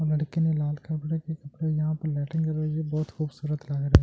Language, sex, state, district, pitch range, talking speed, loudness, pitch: Hindi, male, Delhi, New Delhi, 150-155 Hz, 255 wpm, -28 LUFS, 155 Hz